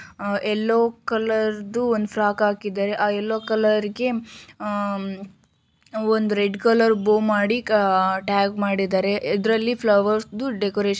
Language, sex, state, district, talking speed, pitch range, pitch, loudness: Kannada, female, Karnataka, Shimoga, 135 wpm, 200-220 Hz, 210 Hz, -21 LUFS